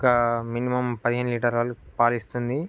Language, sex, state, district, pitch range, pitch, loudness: Telugu, male, Andhra Pradesh, Guntur, 120-125 Hz, 120 Hz, -25 LUFS